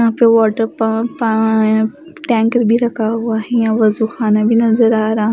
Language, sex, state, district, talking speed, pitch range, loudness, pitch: Hindi, female, Maharashtra, Washim, 145 wpm, 220-230 Hz, -14 LUFS, 225 Hz